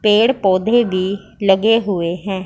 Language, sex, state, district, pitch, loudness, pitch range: Hindi, female, Punjab, Pathankot, 200 Hz, -16 LUFS, 190-220 Hz